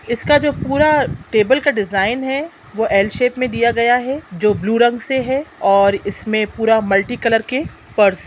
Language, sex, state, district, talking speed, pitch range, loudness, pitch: Hindi, female, Bihar, Sitamarhi, 195 wpm, 210-265 Hz, -16 LUFS, 235 Hz